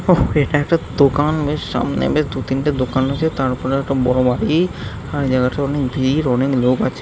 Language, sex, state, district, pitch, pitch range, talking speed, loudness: Bengali, male, West Bengal, Jhargram, 135 Hz, 130-145 Hz, 220 wpm, -18 LUFS